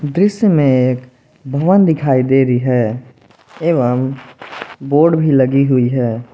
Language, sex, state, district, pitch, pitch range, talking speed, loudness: Hindi, male, Jharkhand, Palamu, 130 Hz, 125-150 Hz, 135 wpm, -14 LUFS